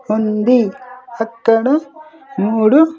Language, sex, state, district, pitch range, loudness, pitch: Telugu, male, Andhra Pradesh, Sri Satya Sai, 220-280 Hz, -15 LUFS, 245 Hz